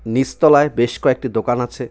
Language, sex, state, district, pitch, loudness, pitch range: Bengali, male, West Bengal, Cooch Behar, 125 Hz, -17 LUFS, 120-135 Hz